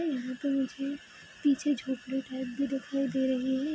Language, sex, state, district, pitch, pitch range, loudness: Hindi, female, Bihar, Gopalganj, 270 Hz, 260-280 Hz, -31 LUFS